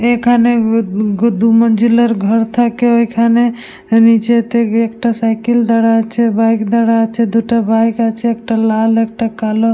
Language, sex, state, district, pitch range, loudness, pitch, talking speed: Bengali, female, West Bengal, Dakshin Dinajpur, 225-235 Hz, -13 LUFS, 230 Hz, 125 wpm